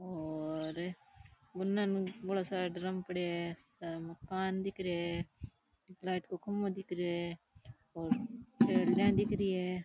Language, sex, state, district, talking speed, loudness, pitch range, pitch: Rajasthani, female, Rajasthan, Churu, 135 wpm, -36 LUFS, 170-195 Hz, 180 Hz